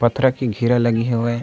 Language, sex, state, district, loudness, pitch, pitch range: Chhattisgarhi, male, Chhattisgarh, Sukma, -19 LUFS, 120 Hz, 115-125 Hz